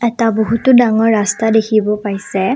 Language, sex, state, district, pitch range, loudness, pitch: Assamese, female, Assam, Kamrup Metropolitan, 210-230 Hz, -13 LUFS, 220 Hz